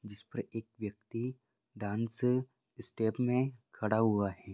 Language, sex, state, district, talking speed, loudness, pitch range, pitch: Hindi, male, Bihar, Vaishali, 130 wpm, -35 LUFS, 105-125 Hz, 115 Hz